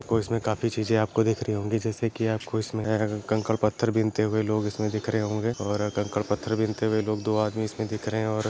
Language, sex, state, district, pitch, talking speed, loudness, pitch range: Kumaoni, male, Uttarakhand, Uttarkashi, 110 Hz, 255 wpm, -27 LUFS, 105-110 Hz